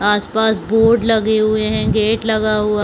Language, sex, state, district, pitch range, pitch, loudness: Hindi, female, Chhattisgarh, Bilaspur, 215-220 Hz, 215 Hz, -15 LUFS